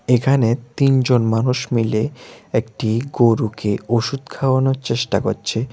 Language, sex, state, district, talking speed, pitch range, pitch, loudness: Bengali, male, Tripura, West Tripura, 105 wpm, 115-130 Hz, 120 Hz, -19 LUFS